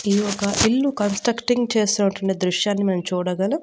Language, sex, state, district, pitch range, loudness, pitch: Telugu, female, Andhra Pradesh, Annamaya, 195-225 Hz, -21 LUFS, 205 Hz